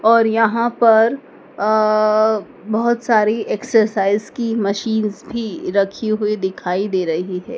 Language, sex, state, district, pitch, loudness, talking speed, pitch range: Hindi, female, Madhya Pradesh, Dhar, 215 Hz, -17 LUFS, 125 wpm, 200-230 Hz